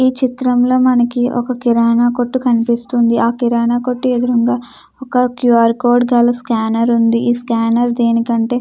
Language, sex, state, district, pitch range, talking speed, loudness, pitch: Telugu, female, Andhra Pradesh, Krishna, 235-250 Hz, 155 wpm, -14 LUFS, 240 Hz